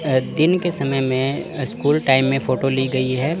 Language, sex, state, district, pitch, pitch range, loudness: Hindi, male, Chandigarh, Chandigarh, 135 Hz, 130-150 Hz, -19 LUFS